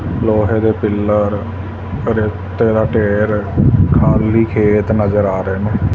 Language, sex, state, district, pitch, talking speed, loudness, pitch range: Punjabi, male, Punjab, Fazilka, 105 Hz, 120 wpm, -15 LUFS, 100-110 Hz